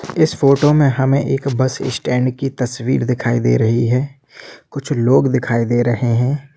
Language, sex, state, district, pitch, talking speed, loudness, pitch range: Hindi, male, Jharkhand, Sahebganj, 130 Hz, 175 wpm, -16 LUFS, 120-135 Hz